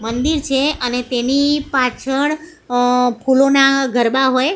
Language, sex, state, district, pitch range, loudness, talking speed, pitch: Gujarati, female, Gujarat, Gandhinagar, 245-280 Hz, -16 LUFS, 120 wpm, 265 Hz